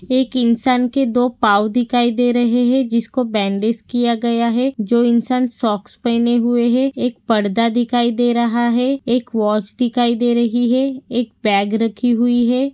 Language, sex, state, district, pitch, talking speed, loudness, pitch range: Hindi, female, Maharashtra, Pune, 240 Hz, 175 wpm, -17 LUFS, 230-245 Hz